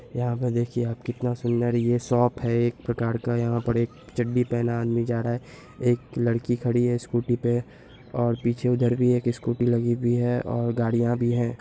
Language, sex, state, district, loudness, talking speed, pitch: Hindi, male, Bihar, Purnia, -25 LUFS, 205 wpm, 120 Hz